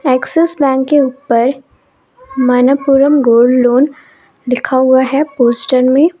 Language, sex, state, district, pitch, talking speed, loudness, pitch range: Hindi, female, Jharkhand, Palamu, 265 Hz, 115 wpm, -11 LUFS, 255-285 Hz